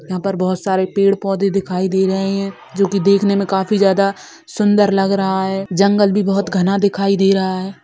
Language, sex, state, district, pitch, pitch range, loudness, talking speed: Hindi, female, Bihar, Sitamarhi, 195 Hz, 190-200 Hz, -16 LUFS, 215 wpm